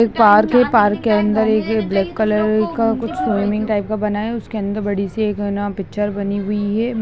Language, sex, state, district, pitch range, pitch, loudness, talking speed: Hindi, female, Bihar, Gaya, 205-220 Hz, 210 Hz, -17 LUFS, 240 wpm